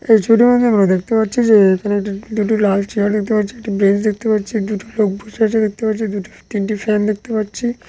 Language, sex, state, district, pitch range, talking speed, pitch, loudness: Bengali, male, West Bengal, Dakshin Dinajpur, 205-220 Hz, 215 wpm, 215 Hz, -16 LUFS